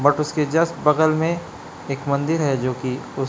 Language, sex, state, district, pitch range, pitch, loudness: Hindi, male, Chhattisgarh, Raipur, 135-160 Hz, 150 Hz, -21 LUFS